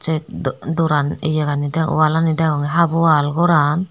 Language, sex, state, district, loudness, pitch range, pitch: Chakma, female, Tripura, Dhalai, -17 LUFS, 150-165 Hz, 160 Hz